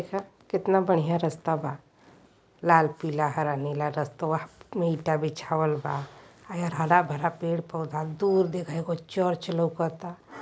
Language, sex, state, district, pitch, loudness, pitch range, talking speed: Hindi, male, Uttar Pradesh, Varanasi, 165 Hz, -27 LUFS, 155-175 Hz, 130 wpm